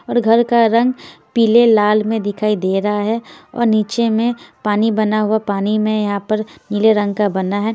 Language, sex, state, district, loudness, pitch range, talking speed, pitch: Hindi, female, Haryana, Jhajjar, -16 LUFS, 210-230 Hz, 200 wpm, 215 Hz